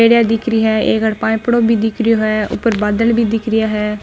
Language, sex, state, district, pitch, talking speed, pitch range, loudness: Marwari, female, Rajasthan, Nagaur, 225 Hz, 240 wpm, 215-230 Hz, -15 LUFS